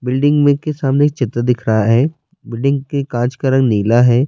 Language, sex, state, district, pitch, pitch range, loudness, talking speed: Urdu, male, Bihar, Saharsa, 130 Hz, 120-145 Hz, -15 LUFS, 210 wpm